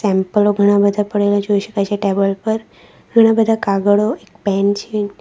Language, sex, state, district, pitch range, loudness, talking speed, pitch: Gujarati, female, Gujarat, Valsad, 200-215 Hz, -16 LUFS, 170 wpm, 205 Hz